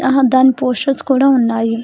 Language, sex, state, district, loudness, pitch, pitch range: Telugu, female, Telangana, Hyderabad, -13 LUFS, 260 Hz, 235-270 Hz